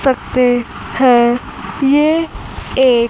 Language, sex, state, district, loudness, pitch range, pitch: Hindi, female, Chandigarh, Chandigarh, -14 LUFS, 240-275 Hz, 255 Hz